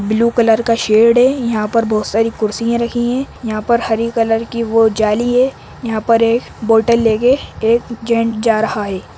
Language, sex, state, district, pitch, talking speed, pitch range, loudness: Hindi, female, Bihar, Purnia, 230 Hz, 190 wpm, 220-235 Hz, -15 LUFS